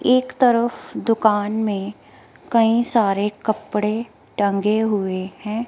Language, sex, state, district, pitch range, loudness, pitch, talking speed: Hindi, female, Himachal Pradesh, Shimla, 205-230 Hz, -20 LUFS, 215 Hz, 105 wpm